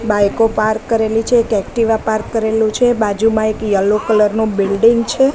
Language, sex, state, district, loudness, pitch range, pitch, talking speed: Gujarati, female, Gujarat, Gandhinagar, -15 LUFS, 215-225 Hz, 220 Hz, 180 wpm